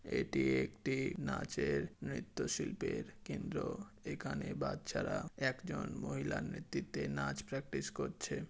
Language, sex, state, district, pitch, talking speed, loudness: Bengali, male, West Bengal, Jhargram, 70 Hz, 100 wpm, -40 LUFS